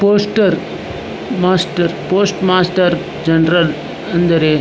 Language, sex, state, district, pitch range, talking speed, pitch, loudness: Kannada, male, Karnataka, Dharwad, 170-190 Hz, 90 wpm, 175 Hz, -15 LUFS